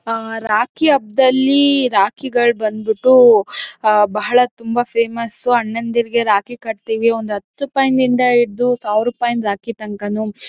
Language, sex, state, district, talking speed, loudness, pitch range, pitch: Kannada, female, Karnataka, Mysore, 115 wpm, -16 LUFS, 215-245 Hz, 230 Hz